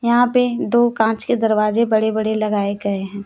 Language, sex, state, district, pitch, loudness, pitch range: Hindi, female, Jharkhand, Deoghar, 220 Hz, -18 LUFS, 210-235 Hz